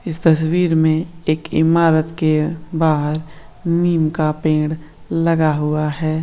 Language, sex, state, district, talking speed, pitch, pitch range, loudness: Marwari, female, Rajasthan, Nagaur, 125 wpm, 160 Hz, 155-165 Hz, -17 LUFS